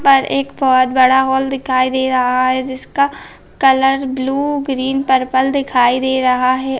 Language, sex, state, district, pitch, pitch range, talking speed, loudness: Hindi, female, Chhattisgarh, Kabirdham, 265 Hz, 255-270 Hz, 160 wpm, -15 LUFS